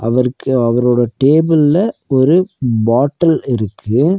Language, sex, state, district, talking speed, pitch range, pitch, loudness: Tamil, male, Tamil Nadu, Nilgiris, 85 wpm, 120-160 Hz, 130 Hz, -14 LUFS